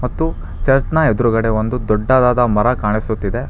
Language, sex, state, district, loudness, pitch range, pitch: Kannada, male, Karnataka, Bangalore, -16 LUFS, 110-130 Hz, 120 Hz